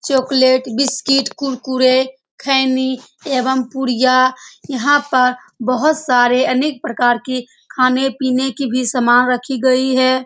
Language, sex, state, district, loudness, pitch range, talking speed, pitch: Hindi, female, Bihar, Saran, -15 LUFS, 255-270 Hz, 115 wpm, 260 Hz